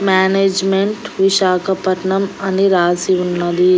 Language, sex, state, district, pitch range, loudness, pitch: Telugu, female, Andhra Pradesh, Annamaya, 180-195 Hz, -15 LUFS, 190 Hz